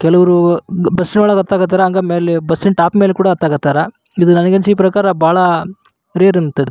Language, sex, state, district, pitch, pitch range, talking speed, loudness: Kannada, male, Karnataka, Raichur, 180 Hz, 170-190 Hz, 170 wpm, -12 LUFS